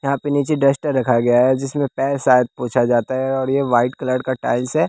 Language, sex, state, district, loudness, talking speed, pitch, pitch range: Hindi, male, Bihar, West Champaran, -18 LUFS, 245 wpm, 130 Hz, 125-140 Hz